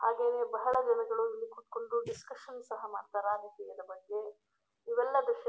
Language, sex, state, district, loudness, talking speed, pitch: Kannada, female, Karnataka, Mysore, -35 LUFS, 130 wpm, 255 Hz